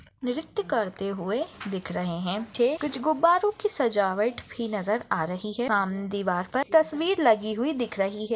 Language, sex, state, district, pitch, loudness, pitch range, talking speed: Hindi, female, Chhattisgarh, Bastar, 225 Hz, -26 LUFS, 200-295 Hz, 180 wpm